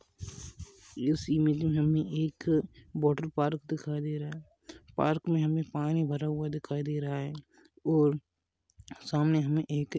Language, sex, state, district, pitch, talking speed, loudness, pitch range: Hindi, male, Rajasthan, Churu, 150 Hz, 150 wpm, -31 LUFS, 145-155 Hz